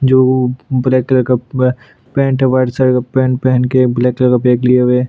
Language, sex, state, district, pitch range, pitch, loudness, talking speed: Hindi, male, Chhattisgarh, Sukma, 125-130 Hz, 130 Hz, -13 LUFS, 245 wpm